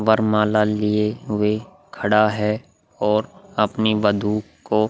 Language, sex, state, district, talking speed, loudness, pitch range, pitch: Hindi, male, Bihar, Vaishali, 120 wpm, -21 LUFS, 105-110 Hz, 105 Hz